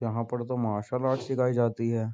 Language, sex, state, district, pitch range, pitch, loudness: Hindi, male, Uttar Pradesh, Jyotiba Phule Nagar, 115-125 Hz, 120 Hz, -29 LUFS